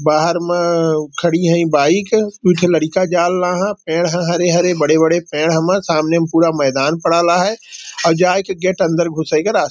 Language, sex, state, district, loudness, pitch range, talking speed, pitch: Hindi, male, Maharashtra, Nagpur, -15 LUFS, 160-180 Hz, 210 wpm, 170 Hz